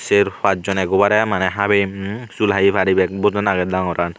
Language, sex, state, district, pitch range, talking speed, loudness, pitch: Chakma, male, Tripura, Unakoti, 95-100 Hz, 170 wpm, -18 LUFS, 100 Hz